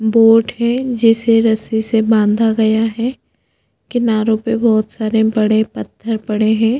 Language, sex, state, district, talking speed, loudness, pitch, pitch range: Hindi, female, Chhattisgarh, Bastar, 130 wpm, -15 LUFS, 225 Hz, 220-230 Hz